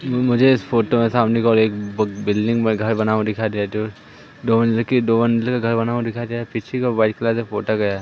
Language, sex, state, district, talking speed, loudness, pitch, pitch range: Hindi, male, Madhya Pradesh, Katni, 275 wpm, -19 LUFS, 115 Hz, 110-120 Hz